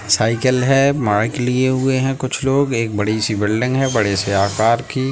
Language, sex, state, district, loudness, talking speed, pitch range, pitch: Hindi, male, Bihar, Sitamarhi, -17 LUFS, 200 wpm, 110-130 Hz, 125 Hz